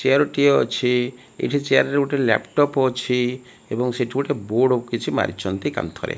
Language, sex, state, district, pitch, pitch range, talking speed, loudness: Odia, male, Odisha, Malkangiri, 125 Hz, 125-140 Hz, 165 wpm, -21 LUFS